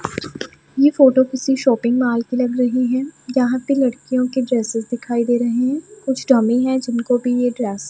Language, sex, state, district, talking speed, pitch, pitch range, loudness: Hindi, female, Punjab, Pathankot, 195 wpm, 250 Hz, 240-260 Hz, -18 LUFS